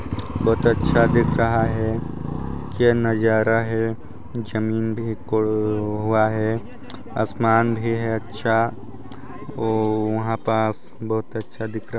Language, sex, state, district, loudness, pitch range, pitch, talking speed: Hindi, male, Chhattisgarh, Sarguja, -22 LUFS, 110-115 Hz, 110 Hz, 120 wpm